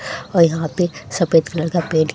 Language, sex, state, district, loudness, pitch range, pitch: Hindi, female, Haryana, Charkhi Dadri, -18 LUFS, 160-175 Hz, 165 Hz